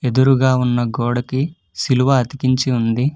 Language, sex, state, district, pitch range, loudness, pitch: Telugu, male, Karnataka, Bangalore, 120-135 Hz, -17 LUFS, 130 Hz